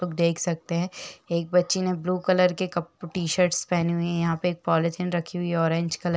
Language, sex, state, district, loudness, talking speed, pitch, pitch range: Hindi, female, Bihar, Gopalganj, -25 LUFS, 255 wpm, 175 Hz, 170-180 Hz